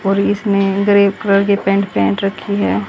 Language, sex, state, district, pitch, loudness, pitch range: Hindi, female, Haryana, Jhajjar, 195 Hz, -15 LUFS, 195-200 Hz